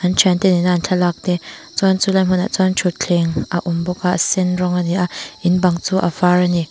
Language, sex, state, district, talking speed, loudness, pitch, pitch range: Mizo, female, Mizoram, Aizawl, 250 wpm, -17 LUFS, 180 Hz, 175-185 Hz